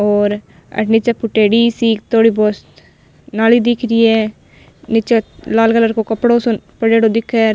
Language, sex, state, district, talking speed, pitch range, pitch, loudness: Rajasthani, female, Rajasthan, Nagaur, 150 wpm, 220-230 Hz, 225 Hz, -14 LUFS